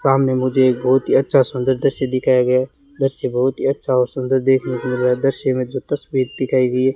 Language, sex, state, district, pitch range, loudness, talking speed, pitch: Hindi, male, Rajasthan, Bikaner, 130-135 Hz, -18 LUFS, 240 wpm, 130 Hz